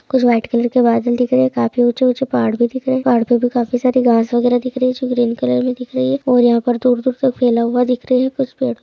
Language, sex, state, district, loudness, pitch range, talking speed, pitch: Hindi, female, Chhattisgarh, Korba, -16 LUFS, 240-255 Hz, 310 wpm, 245 Hz